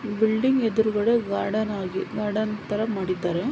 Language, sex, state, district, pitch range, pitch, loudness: Kannada, female, Karnataka, Mysore, 205-220 Hz, 215 Hz, -24 LUFS